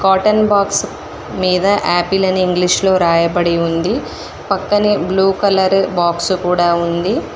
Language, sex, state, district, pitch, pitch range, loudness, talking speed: Telugu, female, Telangana, Mahabubabad, 185 Hz, 175-195 Hz, -14 LUFS, 120 wpm